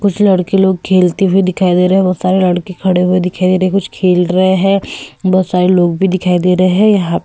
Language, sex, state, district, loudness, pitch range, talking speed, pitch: Hindi, female, Goa, North and South Goa, -12 LUFS, 180-190 Hz, 265 wpm, 185 Hz